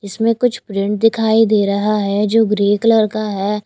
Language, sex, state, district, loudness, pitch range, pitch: Hindi, female, Haryana, Jhajjar, -15 LUFS, 205-225 Hz, 210 Hz